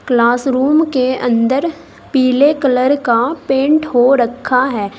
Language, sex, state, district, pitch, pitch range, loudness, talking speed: Hindi, female, Uttar Pradesh, Saharanpur, 260 Hz, 245-275 Hz, -14 LUFS, 120 wpm